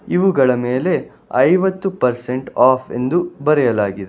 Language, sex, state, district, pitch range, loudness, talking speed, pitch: Kannada, male, Karnataka, Bangalore, 125-180 Hz, -17 LUFS, 105 wpm, 130 Hz